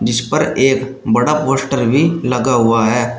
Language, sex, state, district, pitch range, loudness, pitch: Hindi, male, Uttar Pradesh, Shamli, 120-135 Hz, -14 LUFS, 130 Hz